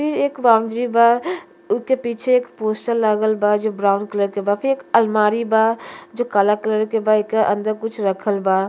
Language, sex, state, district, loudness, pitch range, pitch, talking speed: Bhojpuri, female, Uttar Pradesh, Deoria, -18 LUFS, 210-235 Hz, 220 Hz, 205 wpm